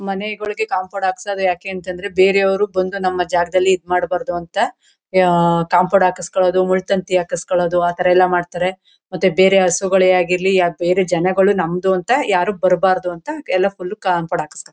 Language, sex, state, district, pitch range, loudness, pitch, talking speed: Kannada, female, Karnataka, Mysore, 180-190 Hz, -17 LUFS, 185 Hz, 160 wpm